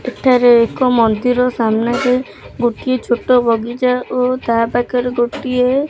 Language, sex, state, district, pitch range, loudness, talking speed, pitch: Odia, female, Odisha, Khordha, 235-255 Hz, -15 LUFS, 120 wpm, 250 Hz